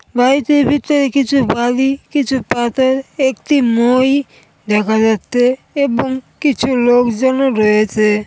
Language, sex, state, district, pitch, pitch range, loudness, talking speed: Bengali, female, West Bengal, Paschim Medinipur, 260 Hz, 235-275 Hz, -14 LUFS, 100 wpm